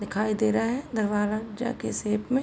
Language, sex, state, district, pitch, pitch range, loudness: Hindi, female, Uttar Pradesh, Gorakhpur, 215 Hz, 210-240 Hz, -27 LUFS